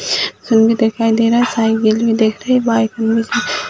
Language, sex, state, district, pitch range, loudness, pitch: Hindi, female, Bihar, Muzaffarpur, 225-235 Hz, -14 LUFS, 225 Hz